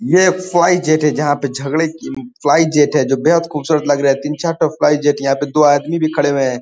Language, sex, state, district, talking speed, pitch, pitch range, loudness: Hindi, male, Uttar Pradesh, Ghazipur, 270 wpm, 150 Hz, 140-160 Hz, -15 LUFS